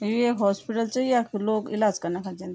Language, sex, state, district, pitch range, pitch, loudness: Garhwali, female, Uttarakhand, Tehri Garhwal, 195-230 Hz, 215 Hz, -25 LUFS